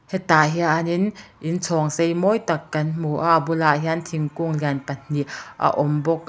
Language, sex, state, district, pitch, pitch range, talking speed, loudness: Mizo, female, Mizoram, Aizawl, 160 Hz, 150-170 Hz, 190 wpm, -21 LUFS